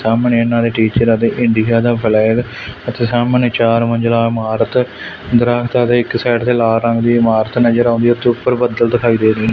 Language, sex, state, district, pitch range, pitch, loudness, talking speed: Punjabi, male, Punjab, Fazilka, 115-120 Hz, 115 Hz, -14 LUFS, 195 wpm